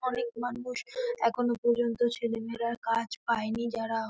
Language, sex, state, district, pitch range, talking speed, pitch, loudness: Bengali, female, West Bengal, North 24 Parganas, 230-245 Hz, 145 wpm, 235 Hz, -31 LUFS